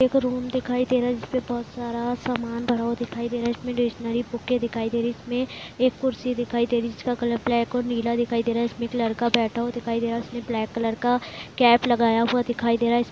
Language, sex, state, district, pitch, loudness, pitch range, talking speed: Hindi, female, Bihar, Lakhisarai, 240 Hz, -24 LUFS, 235-245 Hz, 260 wpm